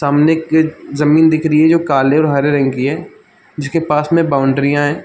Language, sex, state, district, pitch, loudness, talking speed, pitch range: Hindi, male, Chhattisgarh, Balrampur, 150 Hz, -13 LUFS, 215 wpm, 140-160 Hz